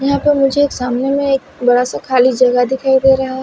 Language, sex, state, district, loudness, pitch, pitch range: Hindi, female, Himachal Pradesh, Shimla, -14 LUFS, 265 Hz, 250-275 Hz